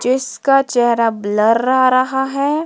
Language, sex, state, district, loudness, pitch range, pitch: Hindi, female, Himachal Pradesh, Shimla, -15 LUFS, 235-270 Hz, 255 Hz